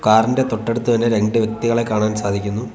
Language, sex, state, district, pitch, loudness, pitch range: Malayalam, male, Kerala, Kollam, 110 Hz, -18 LUFS, 105-115 Hz